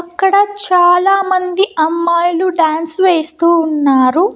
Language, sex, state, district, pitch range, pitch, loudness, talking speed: Telugu, female, Andhra Pradesh, Annamaya, 325-375 Hz, 350 Hz, -12 LUFS, 85 wpm